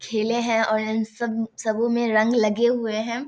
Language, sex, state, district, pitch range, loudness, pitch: Maithili, female, Bihar, Samastipur, 220-235 Hz, -22 LUFS, 225 Hz